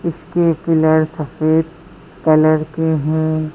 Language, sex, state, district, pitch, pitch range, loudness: Hindi, female, Madhya Pradesh, Bhopal, 160 Hz, 155-165 Hz, -16 LUFS